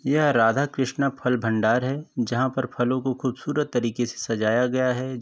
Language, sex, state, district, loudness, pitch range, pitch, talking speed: Hindi, male, Uttar Pradesh, Varanasi, -24 LUFS, 120-135 Hz, 130 Hz, 185 wpm